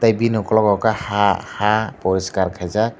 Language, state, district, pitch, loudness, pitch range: Kokborok, Tripura, Dhalai, 105 Hz, -19 LUFS, 95-110 Hz